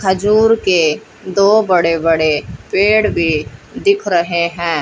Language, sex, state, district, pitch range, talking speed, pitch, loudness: Hindi, female, Haryana, Jhajjar, 165-200 Hz, 125 wpm, 175 Hz, -14 LUFS